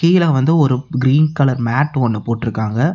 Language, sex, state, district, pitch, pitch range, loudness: Tamil, male, Tamil Nadu, Namakkal, 135 Hz, 120-150 Hz, -16 LUFS